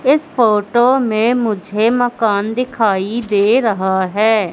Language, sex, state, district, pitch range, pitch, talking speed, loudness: Hindi, female, Madhya Pradesh, Katni, 205-245 Hz, 220 Hz, 120 wpm, -15 LUFS